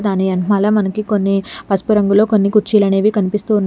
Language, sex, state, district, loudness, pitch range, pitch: Telugu, female, Telangana, Hyderabad, -15 LUFS, 195-210 Hz, 205 Hz